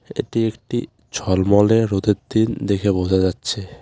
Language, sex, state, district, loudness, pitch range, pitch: Bengali, male, West Bengal, Alipurduar, -19 LUFS, 95-115 Hz, 105 Hz